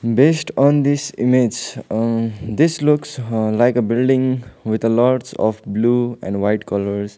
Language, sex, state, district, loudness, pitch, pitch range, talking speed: English, male, Sikkim, Gangtok, -18 LUFS, 120 Hz, 110-130 Hz, 160 wpm